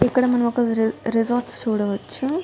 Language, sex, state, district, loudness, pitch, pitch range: Telugu, female, Telangana, Nalgonda, -22 LUFS, 240 Hz, 225-245 Hz